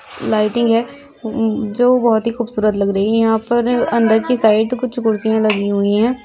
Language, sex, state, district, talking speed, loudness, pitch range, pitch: Hindi, female, Uttar Pradesh, Jyotiba Phule Nagar, 210 wpm, -16 LUFS, 215-240 Hz, 225 Hz